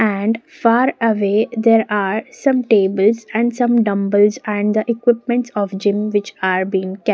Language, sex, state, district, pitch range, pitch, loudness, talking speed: English, female, Maharashtra, Gondia, 205-230 Hz, 215 Hz, -17 LUFS, 160 wpm